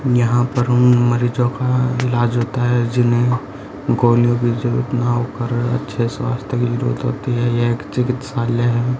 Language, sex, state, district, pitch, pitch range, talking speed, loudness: Hindi, male, Haryana, Rohtak, 120 Hz, 120-125 Hz, 160 wpm, -18 LUFS